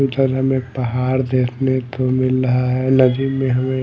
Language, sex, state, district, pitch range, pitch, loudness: Hindi, male, Odisha, Malkangiri, 125-130 Hz, 130 Hz, -18 LUFS